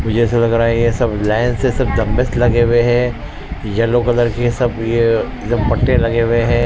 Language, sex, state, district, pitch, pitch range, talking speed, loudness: Hindi, male, Maharashtra, Mumbai Suburban, 115 Hz, 115-120 Hz, 200 wpm, -15 LUFS